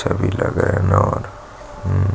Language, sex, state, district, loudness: Hindi, male, Chhattisgarh, Jashpur, -19 LUFS